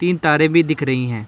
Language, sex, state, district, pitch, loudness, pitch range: Hindi, male, Karnataka, Bangalore, 155 Hz, -16 LUFS, 130-165 Hz